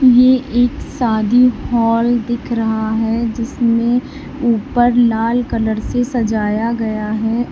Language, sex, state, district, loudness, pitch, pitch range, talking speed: Hindi, female, Uttar Pradesh, Lalitpur, -16 LUFS, 235 Hz, 225-245 Hz, 120 wpm